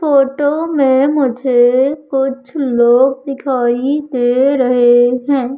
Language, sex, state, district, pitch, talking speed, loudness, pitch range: Hindi, female, Madhya Pradesh, Umaria, 265 Hz, 95 wpm, -13 LUFS, 250-280 Hz